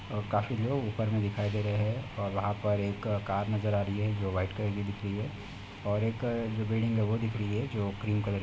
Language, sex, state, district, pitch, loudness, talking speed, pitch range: Hindi, male, Uttar Pradesh, Deoria, 105 Hz, -32 LUFS, 270 wpm, 100-110 Hz